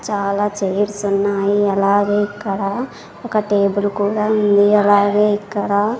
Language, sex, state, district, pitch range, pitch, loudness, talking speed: Telugu, female, Andhra Pradesh, Sri Satya Sai, 200-210 Hz, 205 Hz, -17 LUFS, 110 wpm